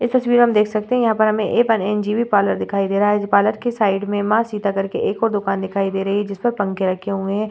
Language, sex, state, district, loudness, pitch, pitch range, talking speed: Hindi, female, Bihar, Vaishali, -18 LUFS, 205 Hz, 200-220 Hz, 320 wpm